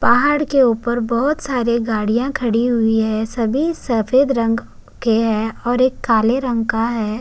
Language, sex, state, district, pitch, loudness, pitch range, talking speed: Hindi, male, Uttarakhand, Tehri Garhwal, 235 Hz, -17 LUFS, 225-255 Hz, 165 wpm